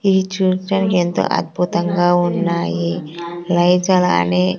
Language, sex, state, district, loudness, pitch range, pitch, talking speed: Telugu, female, Andhra Pradesh, Sri Satya Sai, -17 LUFS, 170-185 Hz, 175 Hz, 80 wpm